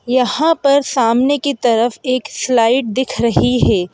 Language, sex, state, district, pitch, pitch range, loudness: Hindi, female, Madhya Pradesh, Bhopal, 255 Hz, 230-275 Hz, -15 LUFS